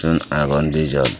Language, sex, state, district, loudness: Chakma, male, Tripura, Dhalai, -18 LUFS